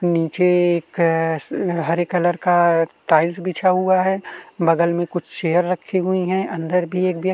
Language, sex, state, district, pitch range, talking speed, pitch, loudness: Hindi, male, Uttarakhand, Tehri Garhwal, 170-185 Hz, 180 wpm, 175 Hz, -19 LUFS